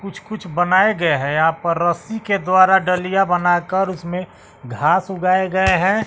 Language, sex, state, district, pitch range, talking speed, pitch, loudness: Hindi, male, Bihar, West Champaran, 170-190 Hz, 170 wpm, 185 Hz, -17 LUFS